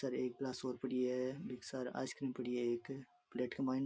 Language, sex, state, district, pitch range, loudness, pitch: Rajasthani, male, Rajasthan, Churu, 125-135 Hz, -42 LUFS, 125 Hz